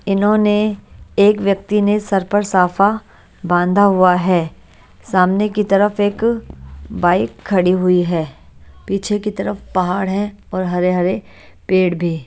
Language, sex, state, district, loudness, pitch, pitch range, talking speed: Hindi, female, Haryana, Jhajjar, -16 LUFS, 190 Hz, 180-205 Hz, 130 wpm